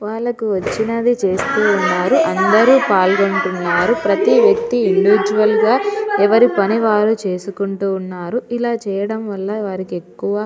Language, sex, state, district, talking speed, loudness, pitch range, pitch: Telugu, female, Telangana, Nalgonda, 120 wpm, -16 LUFS, 195-230 Hz, 210 Hz